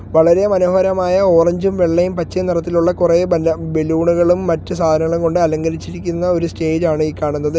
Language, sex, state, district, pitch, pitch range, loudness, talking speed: Malayalam, male, Kerala, Kollam, 170 Hz, 160-180 Hz, -15 LUFS, 140 wpm